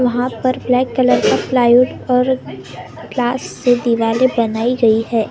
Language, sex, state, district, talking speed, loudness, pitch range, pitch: Hindi, female, Maharashtra, Gondia, 145 wpm, -15 LUFS, 225-255 Hz, 245 Hz